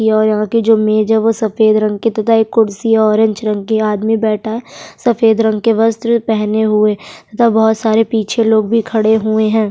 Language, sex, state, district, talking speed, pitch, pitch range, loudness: Hindi, female, Bihar, Kishanganj, 210 wpm, 220 Hz, 215-225 Hz, -13 LUFS